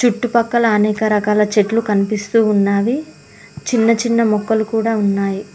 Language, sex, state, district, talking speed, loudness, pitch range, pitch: Telugu, female, Telangana, Mahabubabad, 120 wpm, -16 LUFS, 210-230 Hz, 215 Hz